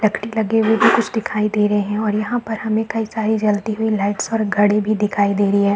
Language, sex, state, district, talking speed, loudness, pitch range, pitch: Hindi, male, Chhattisgarh, Balrampur, 270 wpm, -18 LUFS, 210-220 Hz, 215 Hz